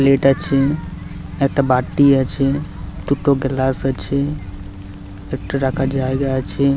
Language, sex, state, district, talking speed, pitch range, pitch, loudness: Bengali, male, West Bengal, Jalpaiguri, 105 wpm, 130-140 Hz, 135 Hz, -18 LUFS